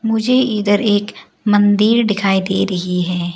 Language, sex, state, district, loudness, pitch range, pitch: Hindi, female, Arunachal Pradesh, Lower Dibang Valley, -15 LUFS, 190-220 Hz, 205 Hz